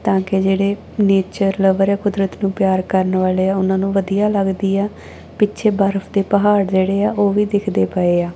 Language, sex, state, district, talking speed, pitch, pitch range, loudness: Punjabi, female, Punjab, Kapurthala, 200 wpm, 195 Hz, 190-205 Hz, -17 LUFS